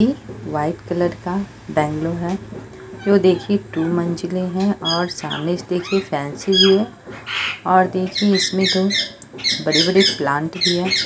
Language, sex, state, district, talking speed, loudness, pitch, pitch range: Hindi, female, Bihar, Saharsa, 135 wpm, -18 LUFS, 175 Hz, 155-190 Hz